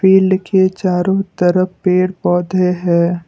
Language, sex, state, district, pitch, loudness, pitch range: Hindi, male, Assam, Kamrup Metropolitan, 185 Hz, -15 LUFS, 180-190 Hz